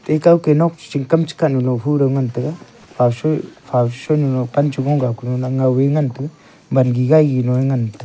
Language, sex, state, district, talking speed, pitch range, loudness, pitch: Wancho, male, Arunachal Pradesh, Longding, 200 wpm, 125-155 Hz, -17 LUFS, 135 Hz